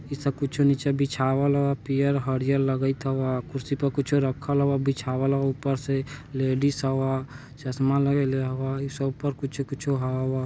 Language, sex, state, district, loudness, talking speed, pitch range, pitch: Bajjika, male, Bihar, Vaishali, -26 LUFS, 160 wpm, 135-140 Hz, 135 Hz